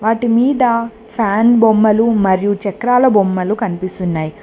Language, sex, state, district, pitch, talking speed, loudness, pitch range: Telugu, female, Telangana, Mahabubabad, 220 Hz, 110 wpm, -14 LUFS, 190-230 Hz